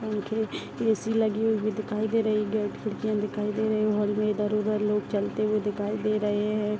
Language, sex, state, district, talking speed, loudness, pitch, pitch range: Hindi, female, Bihar, Darbhanga, 220 wpm, -27 LUFS, 215 Hz, 210-215 Hz